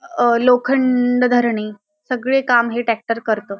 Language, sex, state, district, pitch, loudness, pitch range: Marathi, female, Maharashtra, Dhule, 240 Hz, -17 LUFS, 230-255 Hz